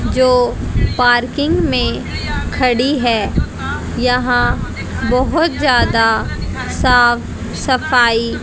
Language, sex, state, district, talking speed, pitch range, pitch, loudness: Hindi, female, Haryana, Jhajjar, 70 wpm, 240-255 Hz, 250 Hz, -15 LUFS